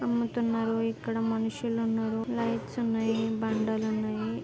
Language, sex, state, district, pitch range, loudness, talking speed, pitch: Telugu, female, Andhra Pradesh, Srikakulam, 220-230 Hz, -30 LUFS, 95 wpm, 225 Hz